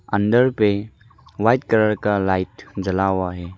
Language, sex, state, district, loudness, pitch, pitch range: Hindi, male, Arunachal Pradesh, Lower Dibang Valley, -20 LUFS, 105 Hz, 95-110 Hz